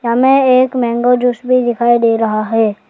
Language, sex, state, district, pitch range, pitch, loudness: Hindi, male, Arunachal Pradesh, Lower Dibang Valley, 225-255 Hz, 240 Hz, -12 LUFS